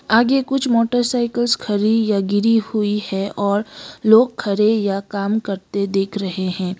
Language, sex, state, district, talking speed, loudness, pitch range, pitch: Hindi, female, Sikkim, Gangtok, 150 wpm, -18 LUFS, 200-230 Hz, 210 Hz